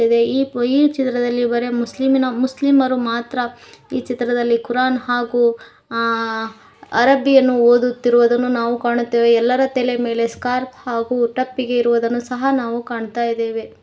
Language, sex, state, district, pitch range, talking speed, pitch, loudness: Kannada, female, Karnataka, Koppal, 235-255 Hz, 125 wpm, 240 Hz, -18 LUFS